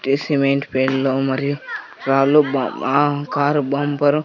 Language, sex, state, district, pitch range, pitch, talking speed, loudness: Telugu, male, Andhra Pradesh, Sri Satya Sai, 135-145 Hz, 140 Hz, 100 wpm, -18 LUFS